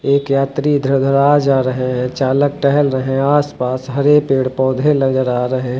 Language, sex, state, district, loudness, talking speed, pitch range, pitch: Hindi, male, Uttar Pradesh, Lucknow, -15 LUFS, 185 wpm, 130-140 Hz, 135 Hz